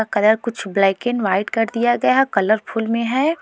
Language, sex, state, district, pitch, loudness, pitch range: Hindi, female, Goa, North and South Goa, 225 Hz, -18 LUFS, 205-240 Hz